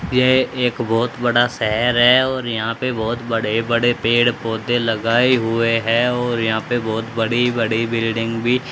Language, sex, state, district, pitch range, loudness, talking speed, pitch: Hindi, male, Haryana, Charkhi Dadri, 115-120 Hz, -18 LUFS, 170 wpm, 115 Hz